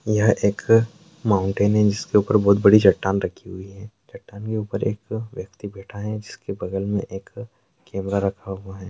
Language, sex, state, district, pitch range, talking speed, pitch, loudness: Hindi, male, Bihar, Bhagalpur, 95-110 Hz, 180 wpm, 100 Hz, -21 LUFS